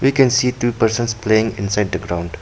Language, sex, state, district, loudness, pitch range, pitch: English, male, Arunachal Pradesh, Papum Pare, -18 LUFS, 100-125 Hz, 110 Hz